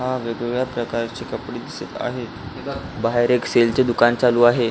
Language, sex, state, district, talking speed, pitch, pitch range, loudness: Marathi, male, Maharashtra, Pune, 165 wpm, 120 Hz, 115-125 Hz, -21 LUFS